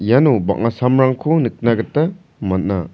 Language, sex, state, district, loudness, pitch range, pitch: Garo, male, Meghalaya, South Garo Hills, -17 LUFS, 105-150 Hz, 125 Hz